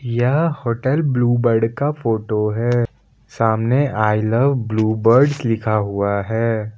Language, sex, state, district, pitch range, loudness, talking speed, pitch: Hindi, male, Jharkhand, Palamu, 110-125 Hz, -18 LUFS, 135 wpm, 115 Hz